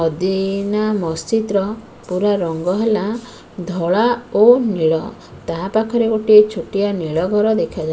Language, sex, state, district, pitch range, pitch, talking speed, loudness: Odia, female, Odisha, Khordha, 180-220 Hz, 205 Hz, 130 wpm, -17 LUFS